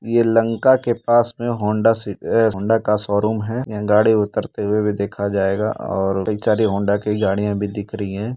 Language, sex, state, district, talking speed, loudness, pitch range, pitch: Hindi, male, Uttar Pradesh, Ghazipur, 200 wpm, -19 LUFS, 100-115 Hz, 105 Hz